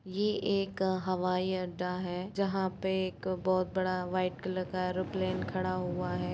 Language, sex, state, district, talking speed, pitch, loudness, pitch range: Hindi, female, Bihar, Sitamarhi, 170 wpm, 185 Hz, -33 LUFS, 180-190 Hz